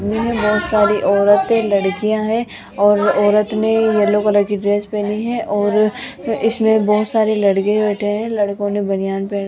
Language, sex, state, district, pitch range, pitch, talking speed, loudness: Hindi, female, Rajasthan, Jaipur, 205-215 Hz, 210 Hz, 170 wpm, -16 LUFS